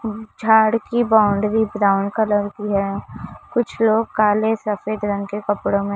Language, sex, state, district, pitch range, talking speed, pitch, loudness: Hindi, female, Maharashtra, Mumbai Suburban, 205-220 Hz, 140 wpm, 210 Hz, -19 LUFS